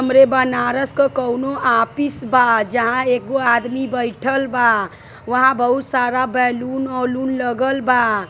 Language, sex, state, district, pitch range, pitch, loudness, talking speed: Bhojpuri, female, Uttar Pradesh, Varanasi, 240-265 Hz, 250 Hz, -17 LUFS, 130 wpm